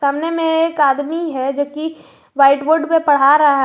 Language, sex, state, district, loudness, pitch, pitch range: Hindi, female, Jharkhand, Garhwa, -15 LUFS, 295 Hz, 280-320 Hz